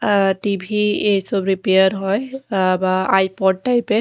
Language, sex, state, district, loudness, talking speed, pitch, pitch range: Bengali, female, Odisha, Khordha, -18 LUFS, 165 wpm, 195 Hz, 190-210 Hz